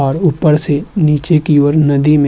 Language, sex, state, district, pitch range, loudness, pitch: Hindi, male, Uttar Pradesh, Hamirpur, 145-160 Hz, -12 LUFS, 150 Hz